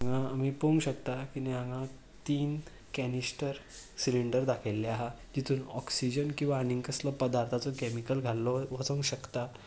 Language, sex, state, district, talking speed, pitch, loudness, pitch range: Konkani, male, Goa, North and South Goa, 130 wpm, 130 Hz, -33 LUFS, 125-140 Hz